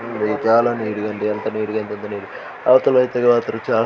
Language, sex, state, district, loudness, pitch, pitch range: Telugu, male, Karnataka, Belgaum, -19 LUFS, 110 Hz, 105-120 Hz